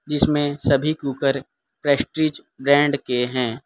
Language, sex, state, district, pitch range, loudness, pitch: Hindi, male, Gujarat, Valsad, 135-145 Hz, -21 LUFS, 140 Hz